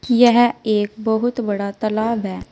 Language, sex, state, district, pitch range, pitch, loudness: Hindi, female, Uttar Pradesh, Saharanpur, 205-235 Hz, 220 Hz, -18 LUFS